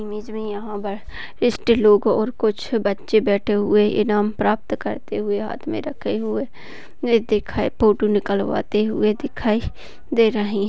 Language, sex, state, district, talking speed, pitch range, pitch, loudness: Hindi, female, Chhattisgarh, Sarguja, 145 wpm, 205-220 Hz, 210 Hz, -21 LUFS